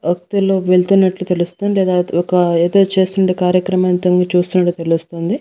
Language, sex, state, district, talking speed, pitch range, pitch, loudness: Telugu, female, Andhra Pradesh, Annamaya, 110 wpm, 175-190 Hz, 180 Hz, -15 LUFS